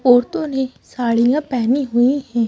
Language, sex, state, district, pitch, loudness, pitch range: Hindi, female, Madhya Pradesh, Bhopal, 250 Hz, -18 LUFS, 240-275 Hz